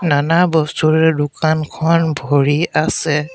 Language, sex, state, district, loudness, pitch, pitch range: Assamese, male, Assam, Sonitpur, -15 LUFS, 155 Hz, 150-165 Hz